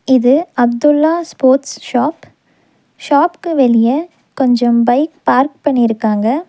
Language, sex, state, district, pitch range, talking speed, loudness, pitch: Tamil, female, Tamil Nadu, Nilgiris, 240-295 Hz, 90 wpm, -13 LUFS, 265 Hz